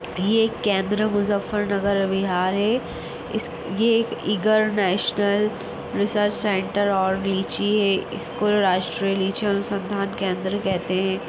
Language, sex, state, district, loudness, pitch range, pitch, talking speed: Hindi, female, Bihar, Jahanabad, -22 LUFS, 195-210 Hz, 200 Hz, 115 wpm